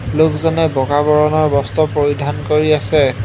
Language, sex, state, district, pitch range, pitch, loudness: Assamese, male, Assam, Hailakandi, 140-155 Hz, 150 Hz, -15 LUFS